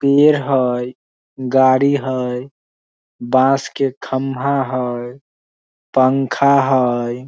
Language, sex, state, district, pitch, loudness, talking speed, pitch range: Maithili, male, Bihar, Samastipur, 130 Hz, -16 LUFS, 90 wpm, 125-135 Hz